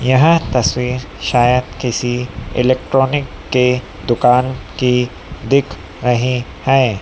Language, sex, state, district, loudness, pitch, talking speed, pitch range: Hindi, female, Madhya Pradesh, Dhar, -16 LUFS, 125 Hz, 105 wpm, 120-130 Hz